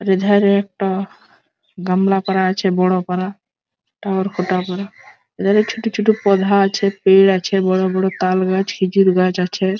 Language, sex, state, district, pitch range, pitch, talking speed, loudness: Bengali, male, West Bengal, Malda, 185-200 Hz, 190 Hz, 135 wpm, -16 LUFS